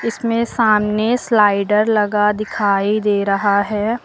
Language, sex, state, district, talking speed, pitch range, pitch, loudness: Hindi, female, Uttar Pradesh, Lucknow, 120 wpm, 205-225 Hz, 210 Hz, -16 LUFS